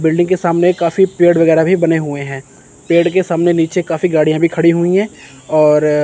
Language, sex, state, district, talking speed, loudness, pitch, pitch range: Hindi, male, Chandigarh, Chandigarh, 210 wpm, -13 LUFS, 170 Hz, 155-175 Hz